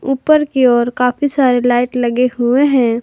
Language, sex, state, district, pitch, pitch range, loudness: Hindi, female, Jharkhand, Garhwa, 250 Hz, 245-270 Hz, -13 LUFS